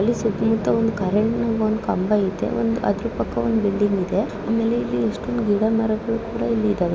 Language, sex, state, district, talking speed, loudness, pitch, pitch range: Kannada, female, Karnataka, Mysore, 165 wpm, -21 LUFS, 220 Hz, 205-225 Hz